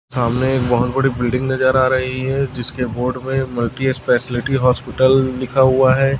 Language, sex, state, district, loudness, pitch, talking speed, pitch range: Hindi, male, Chhattisgarh, Raipur, -17 LUFS, 130 Hz, 165 wpm, 125-130 Hz